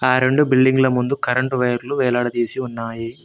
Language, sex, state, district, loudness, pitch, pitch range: Telugu, male, Telangana, Mahabubabad, -19 LUFS, 130 Hz, 120-130 Hz